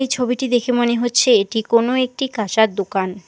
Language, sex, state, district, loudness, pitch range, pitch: Bengali, female, West Bengal, Alipurduar, -17 LUFS, 215-250 Hz, 240 Hz